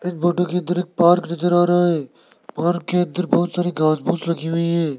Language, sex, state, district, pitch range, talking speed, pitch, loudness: Hindi, male, Rajasthan, Jaipur, 170-175 Hz, 240 wpm, 175 Hz, -19 LUFS